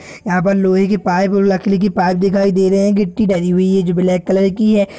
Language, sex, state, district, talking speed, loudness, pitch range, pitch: Hindi, male, Bihar, Purnia, 265 wpm, -14 LUFS, 185-200 Hz, 195 Hz